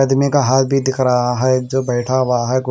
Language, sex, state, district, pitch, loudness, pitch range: Hindi, male, Haryana, Rohtak, 130 Hz, -16 LUFS, 125-135 Hz